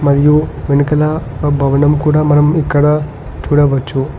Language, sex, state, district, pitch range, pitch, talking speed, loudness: Telugu, male, Telangana, Hyderabad, 140-150 Hz, 145 Hz, 115 wpm, -12 LUFS